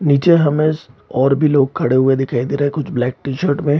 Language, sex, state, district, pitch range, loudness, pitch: Hindi, male, Bihar, Purnia, 130-150 Hz, -16 LUFS, 140 Hz